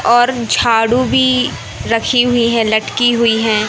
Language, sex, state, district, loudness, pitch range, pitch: Hindi, male, Madhya Pradesh, Katni, -13 LUFS, 210-240 Hz, 230 Hz